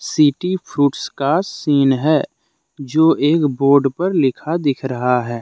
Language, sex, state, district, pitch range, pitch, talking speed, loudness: Hindi, male, Jharkhand, Deoghar, 135-155 Hz, 145 Hz, 145 wpm, -17 LUFS